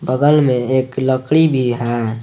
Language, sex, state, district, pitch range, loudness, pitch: Hindi, male, Jharkhand, Garhwa, 120-140 Hz, -15 LUFS, 130 Hz